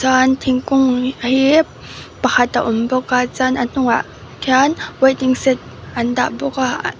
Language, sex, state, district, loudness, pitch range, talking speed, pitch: Mizo, female, Mizoram, Aizawl, -16 LUFS, 250-265 Hz, 155 wpm, 260 Hz